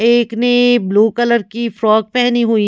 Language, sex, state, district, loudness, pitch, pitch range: Hindi, female, Chhattisgarh, Raipur, -14 LUFS, 235 Hz, 220-240 Hz